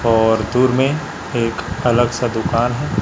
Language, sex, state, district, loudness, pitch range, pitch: Hindi, male, Chhattisgarh, Raipur, -17 LUFS, 110-130 Hz, 120 Hz